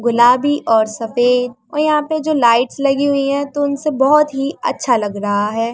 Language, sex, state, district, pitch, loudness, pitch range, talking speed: Hindi, female, Uttar Pradesh, Muzaffarnagar, 270 Hz, -15 LUFS, 235-290 Hz, 200 wpm